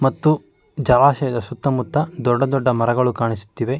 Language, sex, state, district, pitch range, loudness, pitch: Kannada, male, Karnataka, Mysore, 120-140 Hz, -19 LUFS, 125 Hz